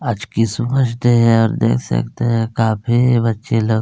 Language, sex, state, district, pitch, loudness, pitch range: Hindi, male, Chhattisgarh, Kabirdham, 115 Hz, -16 LUFS, 115-120 Hz